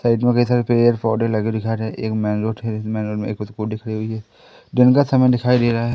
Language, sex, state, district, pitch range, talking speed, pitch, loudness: Hindi, male, Madhya Pradesh, Katni, 110-120 Hz, 220 wpm, 110 Hz, -19 LUFS